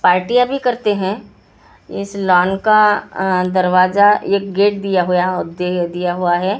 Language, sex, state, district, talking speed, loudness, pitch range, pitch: Hindi, female, Maharashtra, Gondia, 125 wpm, -15 LUFS, 180-205 Hz, 190 Hz